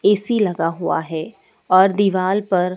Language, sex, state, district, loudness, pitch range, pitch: Hindi, male, Madhya Pradesh, Dhar, -18 LUFS, 180-205 Hz, 185 Hz